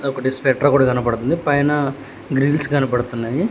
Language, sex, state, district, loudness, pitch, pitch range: Telugu, male, Telangana, Hyderabad, -18 LUFS, 135 Hz, 125-145 Hz